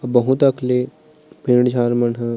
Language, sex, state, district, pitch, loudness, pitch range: Chhattisgarhi, male, Chhattisgarh, Sarguja, 125 Hz, -17 LUFS, 120-135 Hz